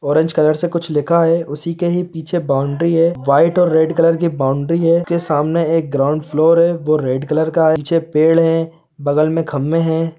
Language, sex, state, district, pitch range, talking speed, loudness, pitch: Hindi, male, Chhattisgarh, Bilaspur, 150-170 Hz, 225 wpm, -15 LUFS, 165 Hz